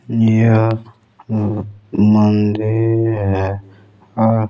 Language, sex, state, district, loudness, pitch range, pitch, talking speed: Hindi, male, Chhattisgarh, Balrampur, -16 LUFS, 105-110 Hz, 110 Hz, 80 wpm